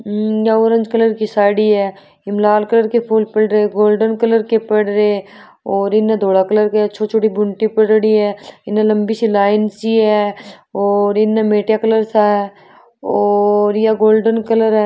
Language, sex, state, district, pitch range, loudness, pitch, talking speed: Marwari, female, Rajasthan, Churu, 205-220 Hz, -14 LUFS, 215 Hz, 185 wpm